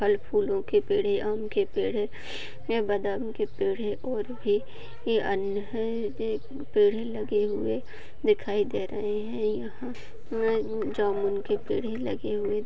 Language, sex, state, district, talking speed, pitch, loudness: Hindi, female, Maharashtra, Dhule, 145 wpm, 220 Hz, -29 LUFS